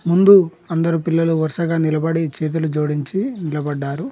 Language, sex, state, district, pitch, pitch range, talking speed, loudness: Telugu, male, Telangana, Mahabubabad, 165 Hz, 155-170 Hz, 115 wpm, -18 LUFS